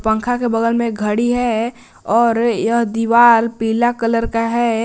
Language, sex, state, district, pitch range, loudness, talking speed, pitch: Hindi, male, Jharkhand, Garhwa, 225-235 Hz, -16 LUFS, 160 wpm, 230 Hz